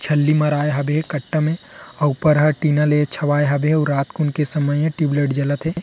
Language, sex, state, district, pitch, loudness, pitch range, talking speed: Chhattisgarhi, male, Chhattisgarh, Rajnandgaon, 150 Hz, -18 LUFS, 145-155 Hz, 225 wpm